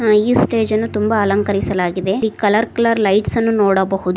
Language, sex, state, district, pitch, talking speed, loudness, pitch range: Kannada, female, Karnataka, Koppal, 210 Hz, 145 wpm, -16 LUFS, 195-225 Hz